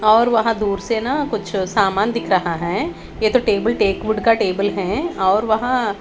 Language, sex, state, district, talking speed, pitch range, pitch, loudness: Hindi, female, Haryana, Charkhi Dadri, 200 wpm, 195-230 Hz, 215 Hz, -18 LUFS